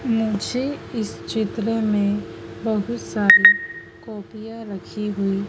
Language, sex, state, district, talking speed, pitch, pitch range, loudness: Hindi, female, Madhya Pradesh, Dhar, 100 wpm, 220 Hz, 205-230 Hz, -19 LUFS